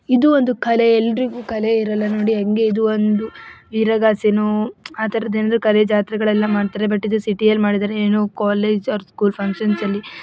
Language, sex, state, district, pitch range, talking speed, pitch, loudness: Kannada, female, Karnataka, Dakshina Kannada, 210-220 Hz, 150 wpm, 215 Hz, -18 LUFS